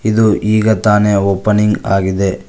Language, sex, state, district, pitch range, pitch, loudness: Kannada, male, Karnataka, Koppal, 100-110 Hz, 105 Hz, -13 LUFS